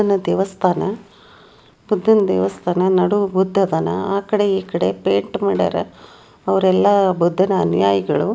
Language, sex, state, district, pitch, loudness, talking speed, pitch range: Kannada, female, Karnataka, Dharwad, 190 Hz, -18 LUFS, 115 wpm, 180-200 Hz